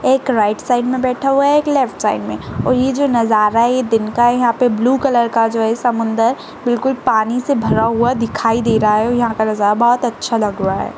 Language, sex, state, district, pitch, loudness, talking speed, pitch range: Kumaoni, female, Uttarakhand, Tehri Garhwal, 235 Hz, -15 LUFS, 250 wpm, 220-255 Hz